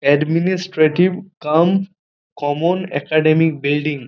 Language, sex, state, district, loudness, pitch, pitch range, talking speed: Bengali, male, West Bengal, Purulia, -17 LUFS, 155 Hz, 150-180 Hz, 90 wpm